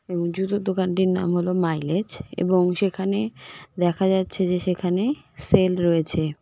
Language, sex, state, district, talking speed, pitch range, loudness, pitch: Bengali, female, West Bengal, Cooch Behar, 130 wpm, 175-190 Hz, -23 LUFS, 185 Hz